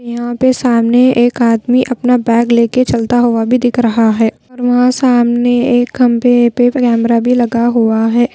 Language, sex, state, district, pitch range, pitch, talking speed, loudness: Hindi, female, Bihar, Patna, 235-245 Hz, 240 Hz, 180 wpm, -11 LUFS